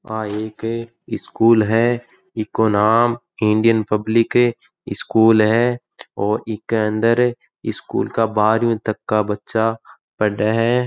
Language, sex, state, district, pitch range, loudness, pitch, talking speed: Rajasthani, male, Rajasthan, Churu, 110-115 Hz, -18 LUFS, 110 Hz, 115 wpm